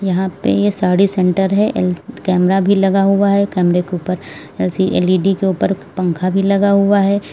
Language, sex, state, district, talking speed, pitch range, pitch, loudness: Hindi, female, Uttar Pradesh, Lalitpur, 190 wpm, 185-200 Hz, 195 Hz, -15 LUFS